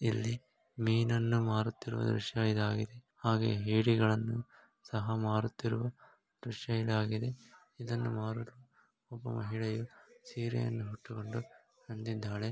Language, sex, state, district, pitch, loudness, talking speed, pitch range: Kannada, male, Karnataka, Shimoga, 115 Hz, -35 LUFS, 85 wpm, 110-120 Hz